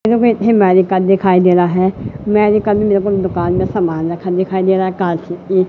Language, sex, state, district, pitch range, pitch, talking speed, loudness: Hindi, female, Madhya Pradesh, Katni, 180-205 Hz, 190 Hz, 160 wpm, -14 LUFS